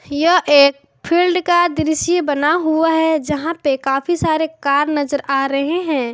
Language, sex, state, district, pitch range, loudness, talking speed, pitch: Hindi, female, Jharkhand, Garhwa, 285-330 Hz, -16 LUFS, 165 wpm, 310 Hz